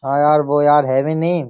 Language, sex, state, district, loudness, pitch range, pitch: Hindi, male, Uttar Pradesh, Jyotiba Phule Nagar, -15 LUFS, 140-150 Hz, 145 Hz